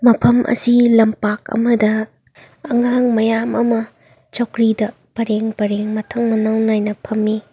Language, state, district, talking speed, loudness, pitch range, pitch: Manipuri, Manipur, Imphal West, 110 wpm, -17 LUFS, 215-235 Hz, 225 Hz